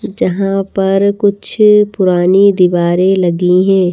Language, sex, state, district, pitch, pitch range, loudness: Hindi, female, Madhya Pradesh, Bhopal, 195 Hz, 180-200 Hz, -11 LUFS